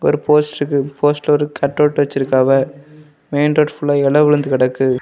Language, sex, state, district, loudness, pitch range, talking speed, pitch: Tamil, male, Tamil Nadu, Kanyakumari, -15 LUFS, 140-150 Hz, 155 wpm, 145 Hz